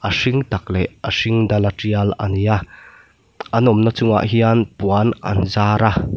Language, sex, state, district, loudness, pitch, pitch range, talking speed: Mizo, male, Mizoram, Aizawl, -17 LUFS, 105 Hz, 100-115 Hz, 195 wpm